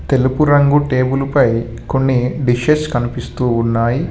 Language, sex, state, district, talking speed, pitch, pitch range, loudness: Telugu, male, Telangana, Hyderabad, 115 wpm, 130 Hz, 120-145 Hz, -15 LUFS